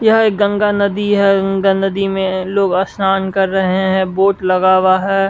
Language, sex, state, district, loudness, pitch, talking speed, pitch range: Hindi, male, Bihar, West Champaran, -14 LUFS, 195 Hz, 180 wpm, 190-200 Hz